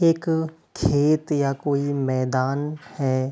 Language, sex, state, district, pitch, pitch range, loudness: Hindi, male, Uttar Pradesh, Hamirpur, 145 Hz, 135-155 Hz, -23 LUFS